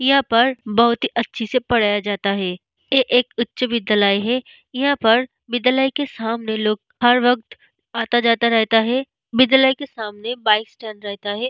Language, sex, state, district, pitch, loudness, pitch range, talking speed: Hindi, female, Bihar, Vaishali, 235 Hz, -18 LUFS, 220-255 Hz, 165 wpm